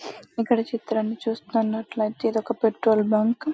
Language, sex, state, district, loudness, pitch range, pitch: Telugu, female, Telangana, Karimnagar, -24 LUFS, 220-230 Hz, 225 Hz